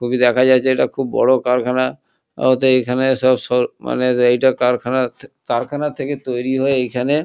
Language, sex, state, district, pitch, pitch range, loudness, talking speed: Bengali, male, West Bengal, Kolkata, 130 Hz, 125-130 Hz, -17 LUFS, 155 wpm